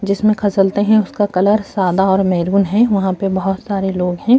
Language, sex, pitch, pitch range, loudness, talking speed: Urdu, female, 195 Hz, 190-205 Hz, -15 LUFS, 230 wpm